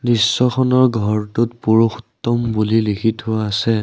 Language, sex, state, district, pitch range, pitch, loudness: Assamese, male, Assam, Sonitpur, 110-120 Hz, 115 Hz, -17 LUFS